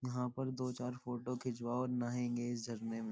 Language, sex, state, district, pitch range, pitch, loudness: Hindi, male, Uttar Pradesh, Jyotiba Phule Nagar, 120-125 Hz, 125 Hz, -40 LUFS